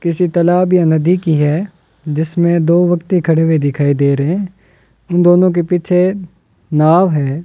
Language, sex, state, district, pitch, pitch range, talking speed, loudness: Hindi, male, Rajasthan, Bikaner, 170 Hz, 155-180 Hz, 160 wpm, -13 LUFS